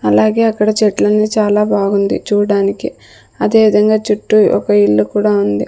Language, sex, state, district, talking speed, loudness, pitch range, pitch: Telugu, female, Andhra Pradesh, Sri Satya Sai, 135 wpm, -13 LUFS, 200-215 Hz, 210 Hz